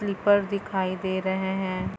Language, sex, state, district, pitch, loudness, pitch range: Hindi, female, Chhattisgarh, Bilaspur, 190 Hz, -26 LUFS, 190-200 Hz